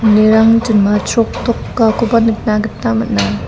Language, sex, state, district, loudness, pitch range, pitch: Garo, female, Meghalaya, South Garo Hills, -13 LUFS, 205-225 Hz, 220 Hz